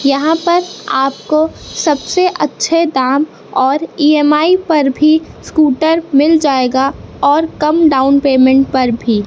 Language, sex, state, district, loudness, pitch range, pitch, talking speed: Hindi, female, Madhya Pradesh, Katni, -12 LUFS, 270-320 Hz, 295 Hz, 125 wpm